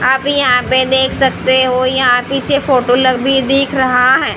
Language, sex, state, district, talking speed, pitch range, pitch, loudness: Hindi, female, Haryana, Rohtak, 180 wpm, 255-270 Hz, 260 Hz, -12 LUFS